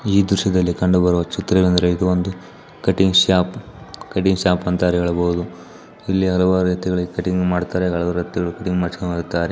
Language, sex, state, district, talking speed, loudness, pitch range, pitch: Kannada, male, Karnataka, Chamarajanagar, 120 wpm, -19 LUFS, 90-95 Hz, 90 Hz